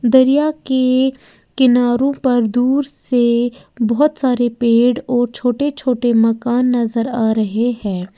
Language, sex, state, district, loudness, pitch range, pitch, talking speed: Hindi, female, Uttar Pradesh, Lalitpur, -16 LUFS, 235-260 Hz, 245 Hz, 125 wpm